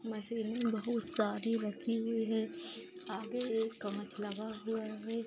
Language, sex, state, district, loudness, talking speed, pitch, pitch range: Hindi, female, Bihar, Bhagalpur, -37 LUFS, 150 wpm, 225 Hz, 215-230 Hz